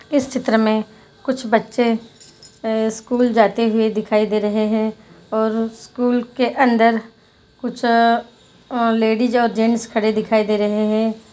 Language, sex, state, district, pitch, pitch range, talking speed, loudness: Hindi, female, Jharkhand, Jamtara, 225 Hz, 220-235 Hz, 145 wpm, -18 LUFS